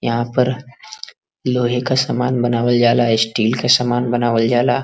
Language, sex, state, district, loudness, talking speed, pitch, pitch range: Bhojpuri, male, Uttar Pradesh, Varanasi, -16 LUFS, 150 wpm, 120 Hz, 120-125 Hz